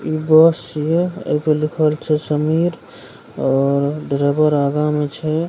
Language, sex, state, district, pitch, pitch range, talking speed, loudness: Maithili, male, Bihar, Begusarai, 150 Hz, 150-160 Hz, 130 wpm, -17 LUFS